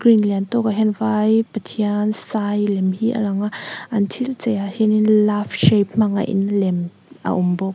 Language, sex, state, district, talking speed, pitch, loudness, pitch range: Mizo, female, Mizoram, Aizawl, 200 wpm, 210 Hz, -19 LUFS, 200-220 Hz